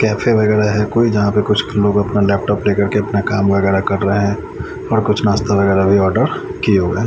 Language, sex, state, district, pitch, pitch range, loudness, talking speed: Hindi, male, Haryana, Charkhi Dadri, 105 Hz, 100-105 Hz, -15 LUFS, 220 wpm